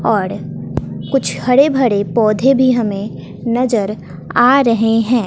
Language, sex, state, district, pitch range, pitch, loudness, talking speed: Hindi, female, Bihar, West Champaran, 200-255 Hz, 225 Hz, -15 LUFS, 125 wpm